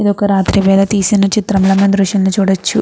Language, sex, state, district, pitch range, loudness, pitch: Telugu, female, Andhra Pradesh, Krishna, 195-205 Hz, -12 LUFS, 195 Hz